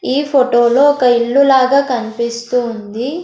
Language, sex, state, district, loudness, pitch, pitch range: Telugu, female, Andhra Pradesh, Sri Satya Sai, -13 LUFS, 250 Hz, 235-275 Hz